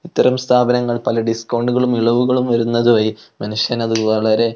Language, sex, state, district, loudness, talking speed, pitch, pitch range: Malayalam, male, Kerala, Kozhikode, -16 LUFS, 130 wpm, 115 Hz, 110-125 Hz